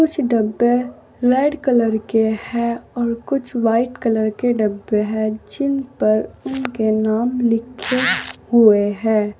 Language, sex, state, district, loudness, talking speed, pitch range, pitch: Hindi, female, Uttar Pradesh, Saharanpur, -18 LUFS, 130 wpm, 220-250 Hz, 235 Hz